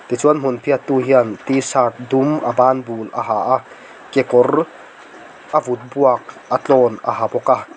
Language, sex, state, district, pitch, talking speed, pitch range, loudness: Mizo, male, Mizoram, Aizawl, 130 Hz, 175 wpm, 125-135 Hz, -17 LUFS